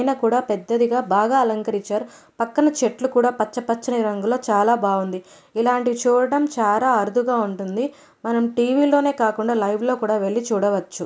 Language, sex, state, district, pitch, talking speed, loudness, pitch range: Telugu, female, Andhra Pradesh, Anantapur, 230 Hz, 145 wpm, -20 LUFS, 210-250 Hz